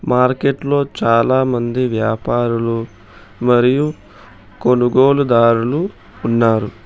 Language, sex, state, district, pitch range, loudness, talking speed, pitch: Telugu, male, Telangana, Hyderabad, 115-130 Hz, -16 LUFS, 50 wpm, 120 Hz